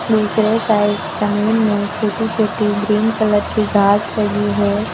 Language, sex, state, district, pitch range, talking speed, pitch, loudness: Hindi, female, Uttar Pradesh, Lucknow, 205-220 Hz, 145 wpm, 210 Hz, -16 LUFS